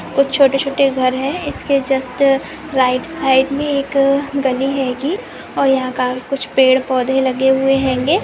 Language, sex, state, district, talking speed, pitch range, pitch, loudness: Hindi, female, Chhattisgarh, Bilaspur, 160 wpm, 260-275 Hz, 270 Hz, -16 LUFS